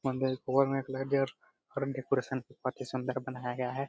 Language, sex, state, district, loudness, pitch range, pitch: Hindi, male, Jharkhand, Jamtara, -33 LUFS, 130-135 Hz, 130 Hz